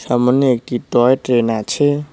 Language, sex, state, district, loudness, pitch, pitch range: Bengali, male, West Bengal, Cooch Behar, -16 LUFS, 125 Hz, 120-135 Hz